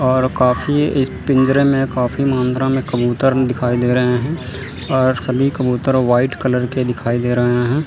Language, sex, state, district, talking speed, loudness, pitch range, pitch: Hindi, male, Chandigarh, Chandigarh, 175 wpm, -16 LUFS, 125-135 Hz, 130 Hz